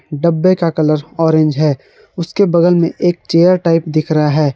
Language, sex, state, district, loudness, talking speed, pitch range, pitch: Hindi, male, Jharkhand, Garhwa, -13 LUFS, 185 wpm, 155-175 Hz, 165 Hz